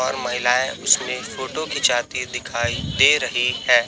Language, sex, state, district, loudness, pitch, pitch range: Hindi, male, Chhattisgarh, Raipur, -20 LUFS, 125 Hz, 120-130 Hz